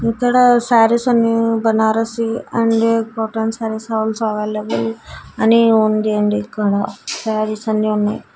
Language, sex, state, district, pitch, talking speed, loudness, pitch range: Telugu, female, Andhra Pradesh, Annamaya, 220 Hz, 115 wpm, -16 LUFS, 215-230 Hz